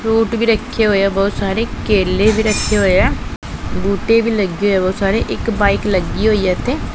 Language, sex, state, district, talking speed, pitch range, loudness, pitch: Punjabi, male, Punjab, Pathankot, 215 wpm, 195-225 Hz, -16 LUFS, 205 Hz